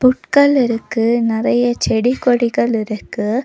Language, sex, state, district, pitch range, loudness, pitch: Tamil, female, Tamil Nadu, Nilgiris, 225-250 Hz, -16 LUFS, 240 Hz